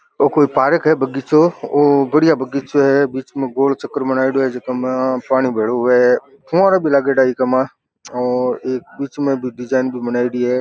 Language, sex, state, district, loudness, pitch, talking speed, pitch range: Rajasthani, male, Rajasthan, Nagaur, -16 LUFS, 130 Hz, 170 wpm, 125-140 Hz